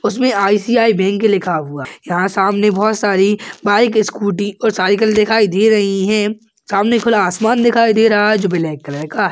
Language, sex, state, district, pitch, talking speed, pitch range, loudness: Hindi, male, Chhattisgarh, Balrampur, 210 Hz, 180 wpm, 195-220 Hz, -14 LUFS